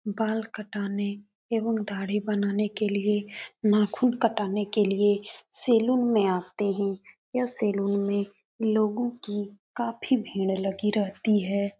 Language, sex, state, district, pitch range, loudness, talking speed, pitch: Hindi, female, Uttar Pradesh, Etah, 200-225 Hz, -27 LUFS, 125 wpm, 210 Hz